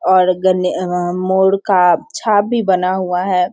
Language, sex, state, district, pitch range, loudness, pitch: Hindi, female, Bihar, Sitamarhi, 180-195 Hz, -15 LUFS, 185 Hz